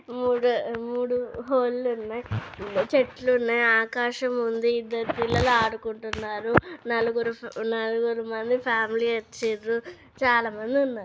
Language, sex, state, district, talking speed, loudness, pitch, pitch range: Telugu, female, Telangana, Nalgonda, 90 wpm, -25 LUFS, 235 Hz, 225-245 Hz